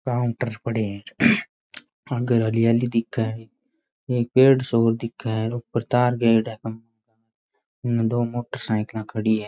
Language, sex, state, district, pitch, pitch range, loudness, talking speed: Rajasthani, male, Rajasthan, Nagaur, 115 Hz, 110-120 Hz, -22 LUFS, 135 wpm